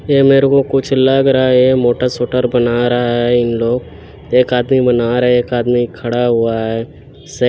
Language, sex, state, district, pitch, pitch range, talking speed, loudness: Hindi, male, Chhattisgarh, Bilaspur, 125 Hz, 120-130 Hz, 190 wpm, -13 LUFS